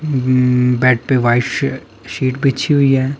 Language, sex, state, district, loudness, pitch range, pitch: Hindi, male, Himachal Pradesh, Shimla, -15 LUFS, 125-135 Hz, 130 Hz